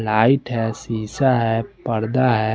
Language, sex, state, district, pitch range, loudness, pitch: Hindi, male, Chandigarh, Chandigarh, 110-130 Hz, -20 LUFS, 115 Hz